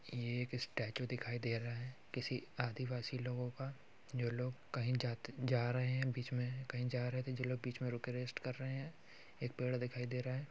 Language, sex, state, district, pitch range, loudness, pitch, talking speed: Hindi, male, Bihar, Muzaffarpur, 125-130 Hz, -42 LUFS, 125 Hz, 230 wpm